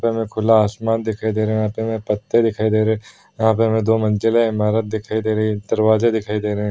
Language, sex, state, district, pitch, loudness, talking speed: Hindi, male, Bihar, Bhagalpur, 110 Hz, -19 LUFS, 275 wpm